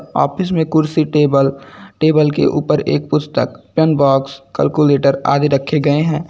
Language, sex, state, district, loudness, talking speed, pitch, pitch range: Hindi, male, Uttar Pradesh, Lucknow, -15 LUFS, 150 wpm, 145 Hz, 140-155 Hz